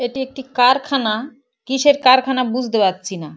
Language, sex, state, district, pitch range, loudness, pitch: Bengali, female, West Bengal, Paschim Medinipur, 225-270 Hz, -17 LUFS, 255 Hz